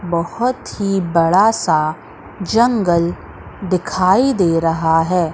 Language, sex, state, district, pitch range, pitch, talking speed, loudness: Hindi, female, Madhya Pradesh, Katni, 165-200 Hz, 180 Hz, 100 wpm, -16 LUFS